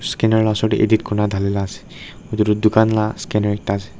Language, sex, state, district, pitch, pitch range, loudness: Nagamese, male, Nagaland, Dimapur, 105 Hz, 105-110 Hz, -18 LUFS